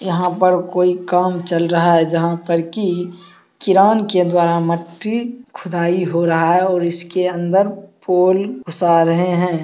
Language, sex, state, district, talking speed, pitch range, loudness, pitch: Hindi, male, Bihar, Samastipur, 155 wpm, 170-185 Hz, -16 LUFS, 180 Hz